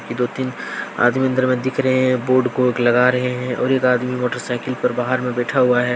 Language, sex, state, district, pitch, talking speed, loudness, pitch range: Hindi, male, Jharkhand, Deoghar, 125 Hz, 250 wpm, -19 LUFS, 125-130 Hz